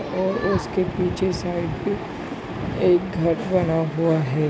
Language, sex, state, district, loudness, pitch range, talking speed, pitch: Hindi, male, Bihar, Bhagalpur, -23 LUFS, 160-185 Hz, 135 wpm, 170 Hz